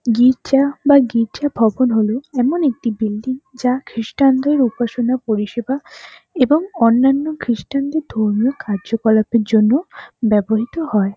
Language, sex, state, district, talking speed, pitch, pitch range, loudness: Bengali, female, West Bengal, North 24 Parganas, 125 wpm, 250 Hz, 220-275 Hz, -17 LUFS